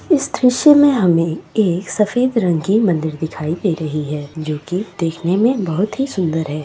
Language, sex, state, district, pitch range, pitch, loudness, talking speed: Maithili, female, Bihar, Sitamarhi, 160-220 Hz, 180 Hz, -17 LUFS, 190 wpm